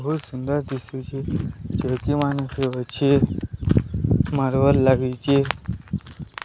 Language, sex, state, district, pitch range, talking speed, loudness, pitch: Odia, male, Odisha, Sambalpur, 130-140 Hz, 85 wpm, -23 LUFS, 135 Hz